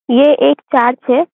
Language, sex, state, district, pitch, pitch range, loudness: Hindi, female, Chhattisgarh, Bastar, 250 Hz, 240-285 Hz, -12 LUFS